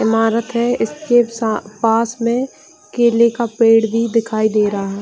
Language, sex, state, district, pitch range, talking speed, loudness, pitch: Hindi, female, Chhattisgarh, Bilaspur, 220-235 Hz, 165 wpm, -16 LUFS, 230 Hz